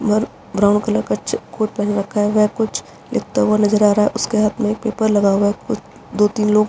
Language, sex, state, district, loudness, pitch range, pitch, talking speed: Hindi, female, Uttarakhand, Uttarkashi, -18 LUFS, 205-215 Hz, 210 Hz, 260 wpm